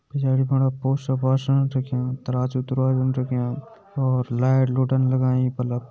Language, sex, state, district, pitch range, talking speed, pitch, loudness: Garhwali, male, Uttarakhand, Uttarkashi, 130-135 Hz, 140 wpm, 130 Hz, -22 LUFS